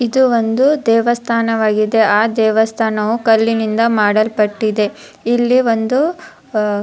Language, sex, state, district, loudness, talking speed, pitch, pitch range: Kannada, female, Karnataka, Dharwad, -14 LUFS, 95 wpm, 225 Hz, 215-240 Hz